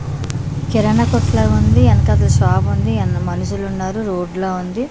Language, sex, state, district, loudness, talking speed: Telugu, female, Andhra Pradesh, Manyam, -16 LUFS, 135 wpm